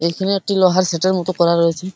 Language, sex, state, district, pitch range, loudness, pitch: Bengali, male, West Bengal, Paschim Medinipur, 170-190 Hz, -16 LUFS, 185 Hz